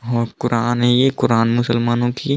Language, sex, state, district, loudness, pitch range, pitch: Hindi, male, Bihar, East Champaran, -17 LUFS, 115-120 Hz, 120 Hz